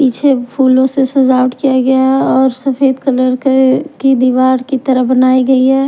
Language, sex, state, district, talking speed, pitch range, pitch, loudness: Hindi, female, Punjab, Kapurthala, 185 wpm, 255-270 Hz, 265 Hz, -11 LUFS